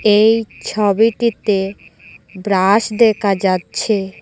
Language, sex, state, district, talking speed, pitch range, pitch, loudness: Bengali, female, Assam, Hailakandi, 70 wpm, 195-220 Hz, 205 Hz, -16 LUFS